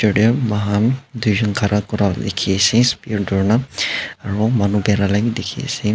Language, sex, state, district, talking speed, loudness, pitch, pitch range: Nagamese, male, Nagaland, Dimapur, 160 wpm, -18 LUFS, 105 Hz, 100-115 Hz